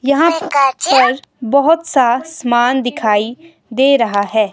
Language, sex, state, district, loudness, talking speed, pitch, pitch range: Hindi, female, Himachal Pradesh, Shimla, -14 LUFS, 120 wpm, 260 Hz, 240-290 Hz